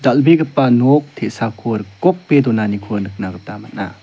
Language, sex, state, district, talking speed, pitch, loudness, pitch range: Garo, male, Meghalaya, South Garo Hills, 120 wpm, 115 Hz, -16 LUFS, 100-145 Hz